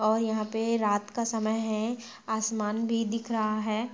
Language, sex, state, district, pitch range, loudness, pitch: Hindi, female, Bihar, Gaya, 215-230 Hz, -29 LUFS, 220 Hz